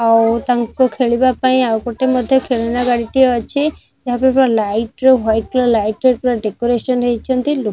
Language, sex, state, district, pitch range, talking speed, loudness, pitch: Odia, female, Odisha, Nuapada, 230-260 Hz, 180 wpm, -15 LUFS, 245 Hz